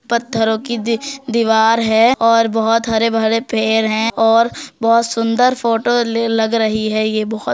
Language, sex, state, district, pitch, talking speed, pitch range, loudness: Hindi, female, Uttar Pradesh, Jyotiba Phule Nagar, 230 Hz, 175 wpm, 220-230 Hz, -15 LUFS